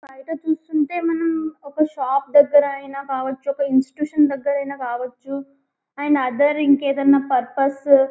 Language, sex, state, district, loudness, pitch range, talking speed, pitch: Telugu, female, Telangana, Karimnagar, -20 LUFS, 275-300 Hz, 120 wpm, 280 Hz